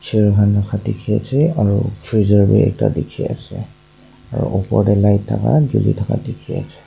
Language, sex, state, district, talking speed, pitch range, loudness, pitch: Nagamese, male, Nagaland, Dimapur, 150 wpm, 100-110 Hz, -17 LUFS, 105 Hz